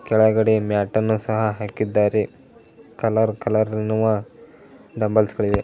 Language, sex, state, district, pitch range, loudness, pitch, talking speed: Kannada, male, Karnataka, Dharwad, 105-110 Hz, -21 LUFS, 110 Hz, 95 wpm